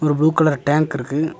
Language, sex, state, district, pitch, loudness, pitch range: Tamil, male, Tamil Nadu, Nilgiris, 150 Hz, -18 LUFS, 145-155 Hz